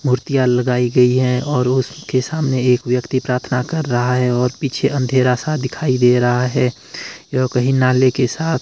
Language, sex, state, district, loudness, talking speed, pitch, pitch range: Hindi, male, Himachal Pradesh, Shimla, -17 LUFS, 180 wpm, 130 Hz, 125-135 Hz